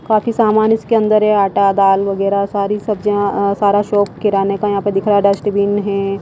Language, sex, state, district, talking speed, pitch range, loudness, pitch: Hindi, female, Himachal Pradesh, Shimla, 200 wpm, 200-210 Hz, -15 LUFS, 200 Hz